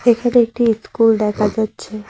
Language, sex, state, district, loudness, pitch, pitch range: Bengali, female, West Bengal, Cooch Behar, -16 LUFS, 225 Hz, 215-235 Hz